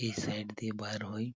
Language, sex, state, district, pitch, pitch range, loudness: Bengali, male, West Bengal, Purulia, 105 Hz, 105-115 Hz, -37 LUFS